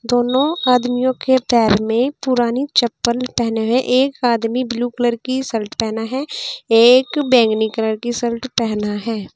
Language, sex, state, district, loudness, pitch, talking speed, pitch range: Hindi, female, Uttar Pradesh, Saharanpur, -17 LUFS, 240 Hz, 155 wpm, 225-255 Hz